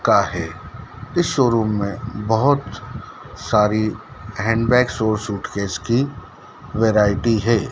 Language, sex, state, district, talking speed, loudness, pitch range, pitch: Hindi, male, Madhya Pradesh, Dhar, 100 wpm, -19 LUFS, 105-120 Hz, 110 Hz